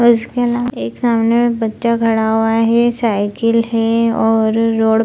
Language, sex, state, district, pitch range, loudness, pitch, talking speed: Hindi, female, Bihar, Purnia, 225-235 Hz, -15 LUFS, 230 Hz, 180 wpm